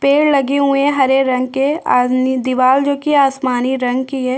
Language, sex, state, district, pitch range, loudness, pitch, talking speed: Hindi, female, Chhattisgarh, Bastar, 255-280 Hz, -15 LUFS, 265 Hz, 220 wpm